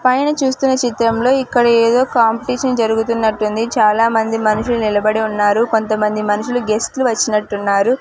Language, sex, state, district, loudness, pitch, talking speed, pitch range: Telugu, female, Andhra Pradesh, Sri Satya Sai, -15 LUFS, 230 Hz, 125 wpm, 215-245 Hz